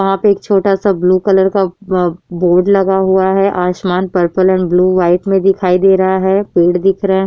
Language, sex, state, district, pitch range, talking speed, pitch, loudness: Hindi, female, Uttar Pradesh, Jyotiba Phule Nagar, 180-195 Hz, 220 wpm, 190 Hz, -12 LUFS